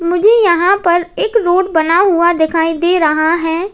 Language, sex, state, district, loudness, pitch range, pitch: Hindi, female, Uttar Pradesh, Lalitpur, -12 LUFS, 330-375 Hz, 345 Hz